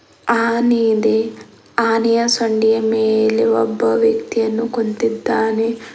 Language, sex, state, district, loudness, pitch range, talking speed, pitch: Kannada, female, Karnataka, Bidar, -17 LUFS, 220-230 Hz, 80 wpm, 225 Hz